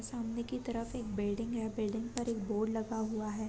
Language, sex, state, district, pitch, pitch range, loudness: Hindi, female, Uttar Pradesh, Gorakhpur, 225 Hz, 215-235 Hz, -37 LUFS